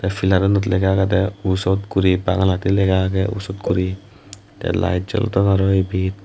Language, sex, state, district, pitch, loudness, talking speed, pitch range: Chakma, male, Tripura, West Tripura, 95 Hz, -19 LUFS, 145 wpm, 95-100 Hz